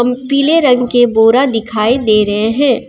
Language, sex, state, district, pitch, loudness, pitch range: Hindi, female, Jharkhand, Deoghar, 245 Hz, -11 LUFS, 220-260 Hz